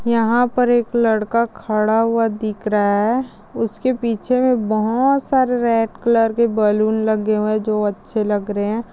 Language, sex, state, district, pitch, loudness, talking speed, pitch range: Hindi, female, Maharashtra, Sindhudurg, 225 Hz, -18 LUFS, 160 wpm, 215-235 Hz